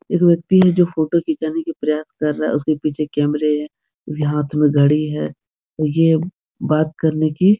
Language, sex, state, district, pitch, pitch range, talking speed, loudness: Hindi, male, Bihar, Jahanabad, 155 Hz, 150-165 Hz, 190 wpm, -18 LUFS